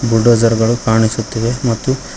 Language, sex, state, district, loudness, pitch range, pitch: Kannada, male, Karnataka, Koppal, -14 LUFS, 115-120 Hz, 115 Hz